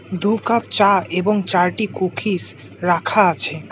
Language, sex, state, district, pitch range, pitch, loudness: Bengali, male, West Bengal, Alipurduar, 185-210 Hz, 200 Hz, -18 LUFS